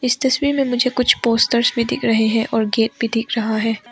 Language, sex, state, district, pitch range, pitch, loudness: Hindi, female, Arunachal Pradesh, Papum Pare, 225-250 Hz, 235 Hz, -18 LUFS